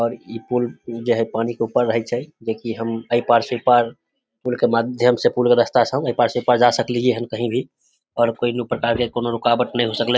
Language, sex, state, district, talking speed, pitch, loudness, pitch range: Maithili, male, Bihar, Samastipur, 255 wpm, 120 Hz, -20 LUFS, 115-120 Hz